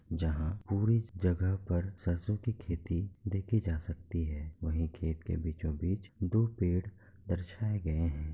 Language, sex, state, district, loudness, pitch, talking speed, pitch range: Hindi, male, Bihar, Kishanganj, -35 LUFS, 90 Hz, 150 wpm, 80-100 Hz